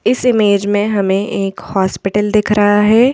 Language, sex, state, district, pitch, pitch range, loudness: Hindi, female, Madhya Pradesh, Bhopal, 205 Hz, 195-215 Hz, -14 LUFS